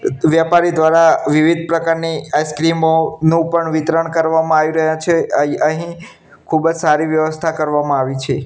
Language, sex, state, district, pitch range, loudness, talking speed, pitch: Gujarati, male, Gujarat, Gandhinagar, 155-165 Hz, -15 LUFS, 140 wpm, 160 Hz